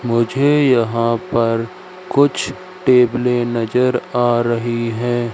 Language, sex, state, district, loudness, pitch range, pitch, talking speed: Hindi, male, Madhya Pradesh, Katni, -17 LUFS, 115-135 Hz, 120 Hz, 100 wpm